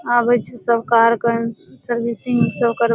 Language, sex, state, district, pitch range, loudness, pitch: Maithili, female, Bihar, Supaul, 230-240 Hz, -18 LUFS, 235 Hz